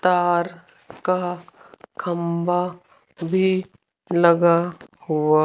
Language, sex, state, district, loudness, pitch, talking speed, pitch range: Hindi, female, Rajasthan, Jaipur, -22 LUFS, 175 Hz, 65 wpm, 170-180 Hz